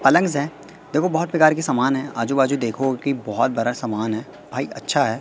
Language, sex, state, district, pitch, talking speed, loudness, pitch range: Hindi, male, Madhya Pradesh, Katni, 135 Hz, 220 wpm, -21 LUFS, 115-145 Hz